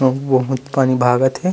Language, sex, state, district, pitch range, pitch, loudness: Chhattisgarhi, male, Chhattisgarh, Rajnandgaon, 130-135 Hz, 130 Hz, -16 LUFS